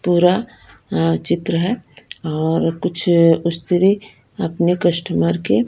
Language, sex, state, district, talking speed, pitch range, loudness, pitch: Hindi, female, Punjab, Kapurthala, 95 wpm, 155-180 Hz, -18 LUFS, 170 Hz